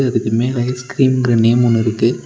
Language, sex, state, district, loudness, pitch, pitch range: Tamil, male, Tamil Nadu, Nilgiris, -15 LUFS, 120 Hz, 115-125 Hz